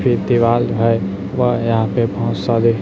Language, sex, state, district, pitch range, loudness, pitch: Hindi, male, Chhattisgarh, Raipur, 110-120 Hz, -17 LUFS, 115 Hz